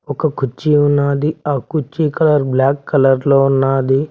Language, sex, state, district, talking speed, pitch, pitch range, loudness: Telugu, male, Telangana, Mahabubabad, 130 wpm, 140 Hz, 135-150 Hz, -15 LUFS